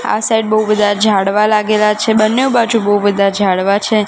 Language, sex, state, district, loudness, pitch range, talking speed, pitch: Gujarati, female, Gujarat, Gandhinagar, -13 LUFS, 205-220 Hz, 190 wpm, 210 Hz